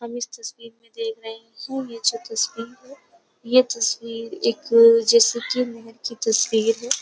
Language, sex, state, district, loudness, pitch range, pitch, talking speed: Hindi, female, Uttar Pradesh, Jyotiba Phule Nagar, -20 LUFS, 230-255 Hz, 230 Hz, 45 wpm